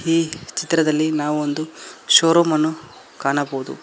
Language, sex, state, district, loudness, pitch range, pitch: Kannada, male, Karnataka, Koppal, -19 LUFS, 150-165 Hz, 155 Hz